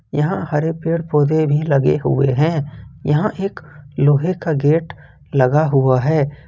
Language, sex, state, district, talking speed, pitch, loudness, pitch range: Hindi, male, Jharkhand, Ranchi, 150 wpm, 150 Hz, -17 LUFS, 140-160 Hz